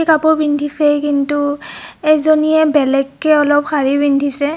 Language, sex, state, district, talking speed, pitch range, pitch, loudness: Assamese, female, Assam, Kamrup Metropolitan, 130 wpm, 285-310 Hz, 295 Hz, -14 LUFS